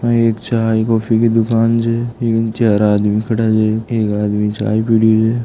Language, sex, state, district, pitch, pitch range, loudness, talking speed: Hindi, male, Rajasthan, Nagaur, 115 Hz, 110-115 Hz, -15 LUFS, 175 wpm